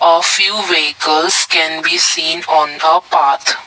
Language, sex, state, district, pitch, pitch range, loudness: English, male, Assam, Kamrup Metropolitan, 160 Hz, 155-175 Hz, -12 LUFS